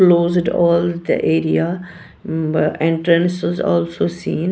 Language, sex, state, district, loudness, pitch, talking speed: English, female, Punjab, Pathankot, -17 LUFS, 165 Hz, 105 wpm